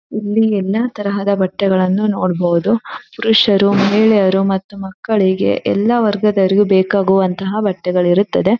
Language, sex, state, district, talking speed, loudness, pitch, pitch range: Kannada, female, Karnataka, Shimoga, 100 wpm, -15 LUFS, 200 Hz, 190-210 Hz